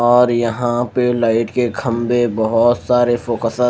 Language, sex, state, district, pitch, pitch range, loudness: Hindi, male, Maharashtra, Mumbai Suburban, 120 Hz, 115-120 Hz, -16 LUFS